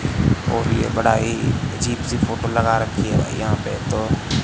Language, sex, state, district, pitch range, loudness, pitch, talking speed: Hindi, male, Madhya Pradesh, Katni, 110-115 Hz, -20 LUFS, 115 Hz, 160 wpm